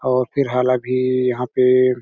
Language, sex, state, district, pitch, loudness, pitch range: Hindi, male, Chhattisgarh, Balrampur, 125 Hz, -18 LUFS, 125-130 Hz